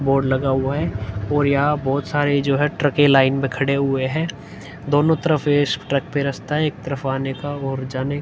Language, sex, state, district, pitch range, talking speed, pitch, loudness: Hindi, male, Uttar Pradesh, Hamirpur, 135-145 Hz, 220 wpm, 140 Hz, -20 LUFS